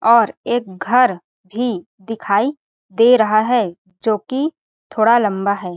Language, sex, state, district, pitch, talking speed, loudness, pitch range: Hindi, female, Chhattisgarh, Balrampur, 220 Hz, 135 wpm, -17 LUFS, 195-245 Hz